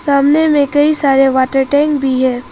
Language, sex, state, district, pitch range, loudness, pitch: Hindi, female, Arunachal Pradesh, Papum Pare, 265-295 Hz, -12 LUFS, 280 Hz